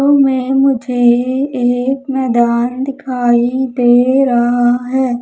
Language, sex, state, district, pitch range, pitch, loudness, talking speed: Hindi, female, Madhya Pradesh, Umaria, 245-265 Hz, 250 Hz, -13 LUFS, 105 wpm